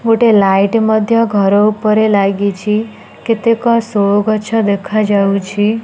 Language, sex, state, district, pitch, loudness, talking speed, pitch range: Odia, female, Odisha, Nuapada, 215 Hz, -13 LUFS, 105 wpm, 200-225 Hz